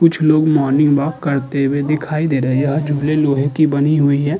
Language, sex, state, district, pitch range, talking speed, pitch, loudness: Hindi, male, Uttar Pradesh, Jalaun, 140-155 Hz, 230 wpm, 145 Hz, -16 LUFS